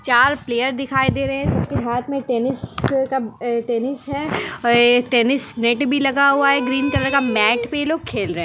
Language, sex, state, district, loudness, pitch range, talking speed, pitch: Hindi, female, Bihar, Muzaffarpur, -19 LUFS, 235-275 Hz, 220 wpm, 260 Hz